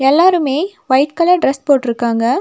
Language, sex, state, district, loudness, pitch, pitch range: Tamil, female, Tamil Nadu, Nilgiris, -14 LUFS, 280 Hz, 260-335 Hz